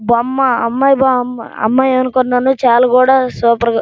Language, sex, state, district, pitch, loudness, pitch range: Telugu, female, Andhra Pradesh, Srikakulam, 250 Hz, -12 LUFS, 235-260 Hz